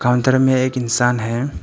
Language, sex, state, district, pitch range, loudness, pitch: Hindi, male, Arunachal Pradesh, Papum Pare, 120-130 Hz, -17 LUFS, 125 Hz